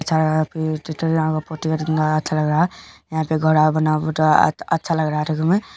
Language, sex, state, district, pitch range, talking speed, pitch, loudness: Maithili, male, Bihar, Kishanganj, 155-160 Hz, 145 wpm, 155 Hz, -19 LUFS